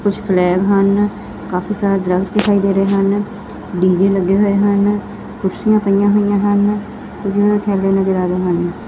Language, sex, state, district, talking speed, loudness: Punjabi, female, Punjab, Fazilka, 155 wpm, -15 LUFS